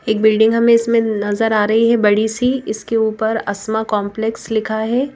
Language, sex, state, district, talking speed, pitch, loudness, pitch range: Hindi, female, Madhya Pradesh, Bhopal, 185 wpm, 220 Hz, -16 LUFS, 215-230 Hz